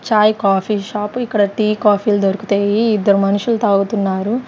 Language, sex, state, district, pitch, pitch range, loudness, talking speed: Telugu, female, Andhra Pradesh, Sri Satya Sai, 210 Hz, 200-215 Hz, -16 LUFS, 135 wpm